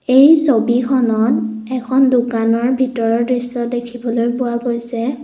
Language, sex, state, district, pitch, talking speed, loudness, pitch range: Assamese, female, Assam, Kamrup Metropolitan, 245 Hz, 105 wpm, -16 LUFS, 235-255 Hz